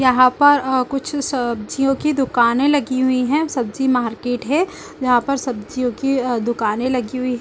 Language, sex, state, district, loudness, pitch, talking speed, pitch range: Hindi, female, Chhattisgarh, Bilaspur, -18 LUFS, 255 Hz, 155 wpm, 245-275 Hz